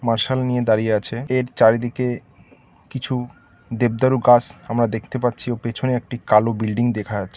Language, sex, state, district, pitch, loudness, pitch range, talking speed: Bengali, male, West Bengal, North 24 Parganas, 120 Hz, -20 LUFS, 110-125 Hz, 155 wpm